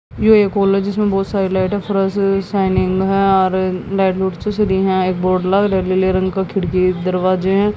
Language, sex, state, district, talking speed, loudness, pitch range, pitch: Hindi, female, Haryana, Jhajjar, 180 wpm, -16 LUFS, 185-195 Hz, 190 Hz